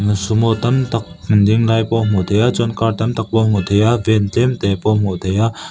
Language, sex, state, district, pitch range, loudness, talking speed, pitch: Mizo, male, Mizoram, Aizawl, 105-115 Hz, -16 LUFS, 295 wpm, 110 Hz